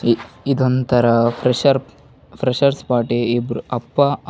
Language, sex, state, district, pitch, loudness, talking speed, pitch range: Kannada, male, Karnataka, Bellary, 125 Hz, -18 LUFS, 110 wpm, 120-135 Hz